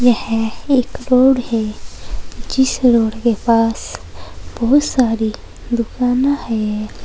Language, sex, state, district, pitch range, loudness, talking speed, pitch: Hindi, female, Uttar Pradesh, Saharanpur, 220-255 Hz, -16 LUFS, 100 wpm, 235 Hz